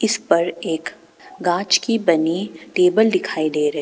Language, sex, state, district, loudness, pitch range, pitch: Hindi, female, Arunachal Pradesh, Papum Pare, -19 LUFS, 160-205 Hz, 175 Hz